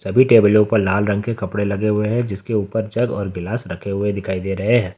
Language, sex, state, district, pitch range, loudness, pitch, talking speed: Hindi, male, Jharkhand, Ranchi, 100-115 Hz, -19 LUFS, 105 Hz, 255 wpm